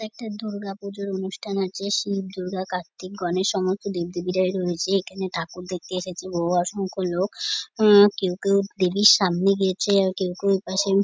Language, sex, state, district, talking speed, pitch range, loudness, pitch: Bengali, female, West Bengal, North 24 Parganas, 165 wpm, 185-200 Hz, -23 LUFS, 190 Hz